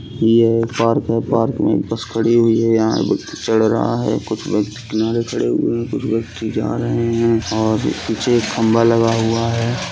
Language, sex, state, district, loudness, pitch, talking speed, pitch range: Bhojpuri, male, Uttar Pradesh, Gorakhpur, -17 LUFS, 115 Hz, 190 wpm, 110-115 Hz